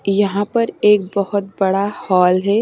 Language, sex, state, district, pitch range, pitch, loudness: Hindi, female, Maharashtra, Mumbai Suburban, 195-205 Hz, 200 Hz, -17 LUFS